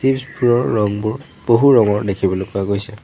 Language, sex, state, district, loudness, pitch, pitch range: Assamese, male, Assam, Sonitpur, -17 LUFS, 105 Hz, 100-125 Hz